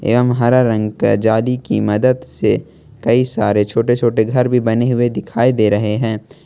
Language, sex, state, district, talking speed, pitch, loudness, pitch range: Hindi, male, Jharkhand, Ranchi, 185 wpm, 115 Hz, -15 LUFS, 105-125 Hz